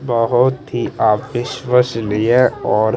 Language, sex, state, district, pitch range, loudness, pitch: Hindi, male, Chandigarh, Chandigarh, 110-125 Hz, -16 LUFS, 120 Hz